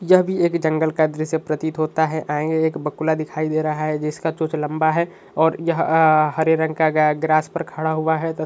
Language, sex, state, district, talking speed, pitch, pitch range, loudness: Hindi, male, Uttar Pradesh, Varanasi, 240 wpm, 160 Hz, 155-160 Hz, -20 LUFS